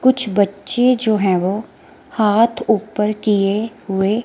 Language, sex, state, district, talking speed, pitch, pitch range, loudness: Hindi, female, Himachal Pradesh, Shimla, 125 wpm, 210 Hz, 200-230 Hz, -17 LUFS